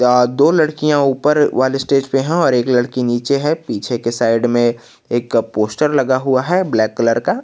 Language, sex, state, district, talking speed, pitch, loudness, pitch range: Hindi, male, Jharkhand, Garhwa, 200 wpm, 130 Hz, -15 LUFS, 120-150 Hz